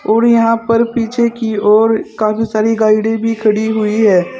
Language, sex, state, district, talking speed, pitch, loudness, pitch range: Hindi, female, Uttar Pradesh, Saharanpur, 175 wpm, 225 Hz, -13 LUFS, 215-230 Hz